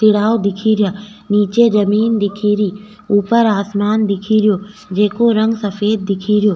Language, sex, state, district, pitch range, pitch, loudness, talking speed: Rajasthani, female, Rajasthan, Nagaur, 205-215 Hz, 210 Hz, -15 LUFS, 145 wpm